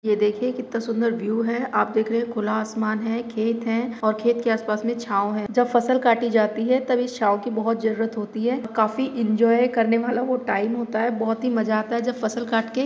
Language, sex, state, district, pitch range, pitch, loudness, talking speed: Hindi, female, Uttar Pradesh, Jalaun, 220-240 Hz, 230 Hz, -23 LUFS, 240 wpm